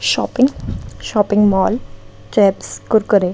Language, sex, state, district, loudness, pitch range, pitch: Hindi, female, Delhi, New Delhi, -16 LUFS, 200-220 Hz, 210 Hz